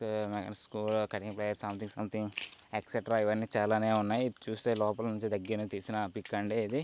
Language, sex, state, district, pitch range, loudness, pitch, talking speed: Telugu, male, Andhra Pradesh, Guntur, 105-110 Hz, -34 LUFS, 105 Hz, 115 wpm